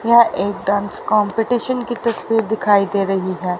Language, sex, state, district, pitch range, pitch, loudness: Hindi, female, Haryana, Rohtak, 195-230 Hz, 210 Hz, -18 LUFS